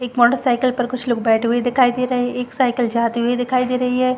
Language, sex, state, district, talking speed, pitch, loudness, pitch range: Hindi, female, Chhattisgarh, Rajnandgaon, 275 wpm, 245 Hz, -18 LUFS, 240-250 Hz